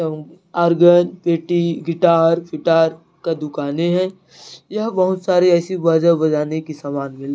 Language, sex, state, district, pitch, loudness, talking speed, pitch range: Hindi, male, Chhattisgarh, Narayanpur, 170 Hz, -17 LUFS, 140 wpm, 155-175 Hz